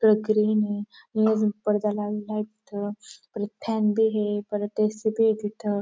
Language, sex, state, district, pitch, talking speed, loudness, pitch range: Marathi, female, Maharashtra, Dhule, 210 Hz, 135 wpm, -25 LUFS, 210-215 Hz